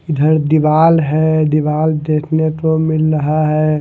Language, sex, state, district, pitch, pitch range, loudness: Hindi, male, Punjab, Fazilka, 155 Hz, 155-160 Hz, -14 LUFS